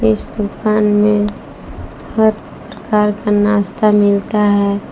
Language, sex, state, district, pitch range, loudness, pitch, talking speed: Hindi, female, Jharkhand, Palamu, 205-210 Hz, -14 LUFS, 210 Hz, 110 wpm